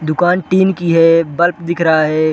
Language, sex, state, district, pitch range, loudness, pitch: Hindi, male, Chhattisgarh, Sarguja, 155-175 Hz, -13 LUFS, 165 Hz